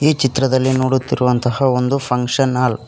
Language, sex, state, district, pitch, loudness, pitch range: Kannada, male, Karnataka, Koppal, 130 Hz, -16 LUFS, 125-135 Hz